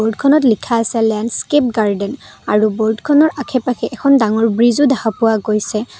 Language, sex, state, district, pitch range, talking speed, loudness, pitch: Assamese, female, Assam, Kamrup Metropolitan, 220-270 Hz, 150 wpm, -15 LUFS, 230 Hz